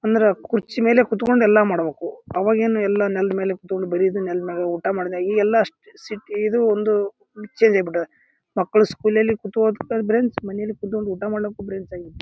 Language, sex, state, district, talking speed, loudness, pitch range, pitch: Kannada, male, Karnataka, Bijapur, 170 wpm, -20 LUFS, 190-220 Hz, 210 Hz